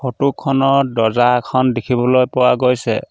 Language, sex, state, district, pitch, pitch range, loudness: Assamese, male, Assam, Sonitpur, 125 Hz, 125-135 Hz, -15 LUFS